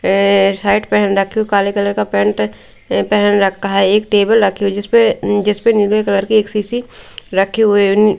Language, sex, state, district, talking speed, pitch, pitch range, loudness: Hindi, female, Delhi, New Delhi, 200 wpm, 205 Hz, 195-210 Hz, -14 LUFS